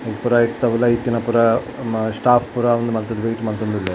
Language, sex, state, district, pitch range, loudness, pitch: Tulu, male, Karnataka, Dakshina Kannada, 110-120 Hz, -19 LUFS, 115 Hz